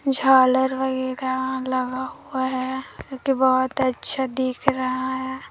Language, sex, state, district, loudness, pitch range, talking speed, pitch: Hindi, female, Chhattisgarh, Raipur, -22 LUFS, 260-265 Hz, 130 wpm, 260 Hz